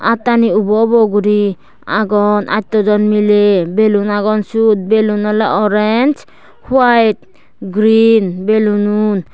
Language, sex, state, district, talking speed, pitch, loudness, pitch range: Chakma, female, Tripura, West Tripura, 95 wpm, 210 Hz, -12 LUFS, 205-220 Hz